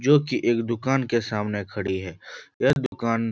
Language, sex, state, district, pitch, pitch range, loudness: Hindi, male, Bihar, Jahanabad, 115 Hz, 105-130 Hz, -24 LUFS